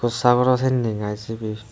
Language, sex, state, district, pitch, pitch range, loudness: Chakma, male, Tripura, Dhalai, 115 Hz, 110-125 Hz, -21 LUFS